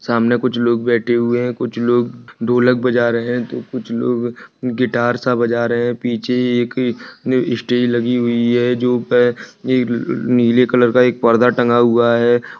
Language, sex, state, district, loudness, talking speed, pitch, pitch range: Hindi, male, Rajasthan, Churu, -16 LUFS, 165 wpm, 120 Hz, 120-125 Hz